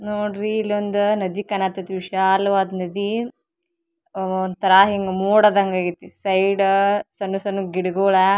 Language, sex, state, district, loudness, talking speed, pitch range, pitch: Kannada, female, Karnataka, Dharwad, -20 LUFS, 105 wpm, 190-205 Hz, 195 Hz